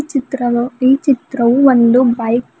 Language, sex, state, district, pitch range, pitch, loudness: Kannada, female, Karnataka, Bidar, 240-270 Hz, 255 Hz, -13 LUFS